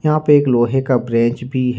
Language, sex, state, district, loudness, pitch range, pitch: Hindi, male, Jharkhand, Ranchi, -15 LUFS, 120-140 Hz, 125 Hz